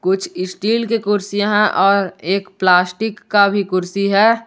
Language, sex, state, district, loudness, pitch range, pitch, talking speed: Hindi, male, Jharkhand, Garhwa, -16 LUFS, 185-210 Hz, 200 Hz, 160 wpm